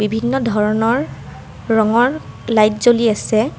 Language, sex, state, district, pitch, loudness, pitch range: Assamese, female, Assam, Kamrup Metropolitan, 225 Hz, -16 LUFS, 215-240 Hz